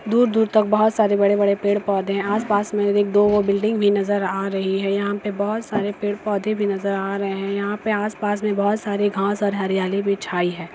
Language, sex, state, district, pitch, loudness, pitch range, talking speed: Hindi, female, Bihar, Sitamarhi, 205 Hz, -21 LUFS, 200-210 Hz, 235 wpm